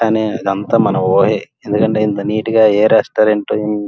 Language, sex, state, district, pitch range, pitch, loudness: Telugu, male, Andhra Pradesh, Krishna, 105-110 Hz, 105 Hz, -14 LUFS